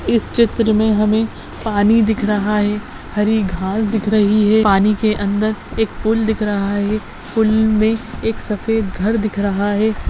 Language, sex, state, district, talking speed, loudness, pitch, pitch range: Hindi, female, Maharashtra, Nagpur, 170 wpm, -17 LUFS, 215 Hz, 205-220 Hz